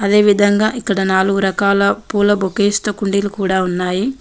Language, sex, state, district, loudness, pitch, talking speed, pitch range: Telugu, female, Telangana, Mahabubabad, -15 LUFS, 200 Hz, 145 wpm, 195-205 Hz